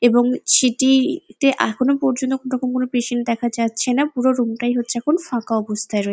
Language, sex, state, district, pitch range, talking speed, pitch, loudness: Bengali, female, West Bengal, Jalpaiguri, 235-260 Hz, 165 wpm, 245 Hz, -19 LUFS